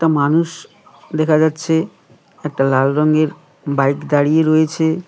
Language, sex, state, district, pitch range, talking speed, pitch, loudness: Bengali, male, West Bengal, Cooch Behar, 145-160 Hz, 105 wpm, 155 Hz, -16 LUFS